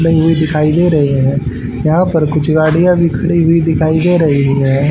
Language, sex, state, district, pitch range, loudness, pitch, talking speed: Hindi, male, Haryana, Charkhi Dadri, 140-165 Hz, -12 LUFS, 155 Hz, 185 wpm